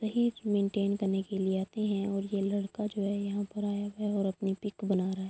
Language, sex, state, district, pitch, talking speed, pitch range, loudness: Urdu, female, Andhra Pradesh, Anantapur, 200 Hz, 225 wpm, 195-205 Hz, -32 LUFS